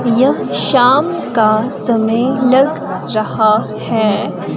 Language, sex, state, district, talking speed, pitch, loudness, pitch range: Hindi, female, Himachal Pradesh, Shimla, 90 wpm, 235 Hz, -13 LUFS, 215-260 Hz